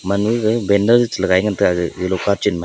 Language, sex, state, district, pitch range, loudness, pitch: Wancho, male, Arunachal Pradesh, Longding, 95-110 Hz, -17 LUFS, 100 Hz